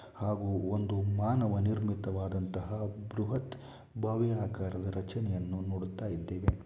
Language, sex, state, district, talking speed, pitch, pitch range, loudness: Kannada, male, Karnataka, Shimoga, 80 wpm, 100 Hz, 95-110 Hz, -34 LUFS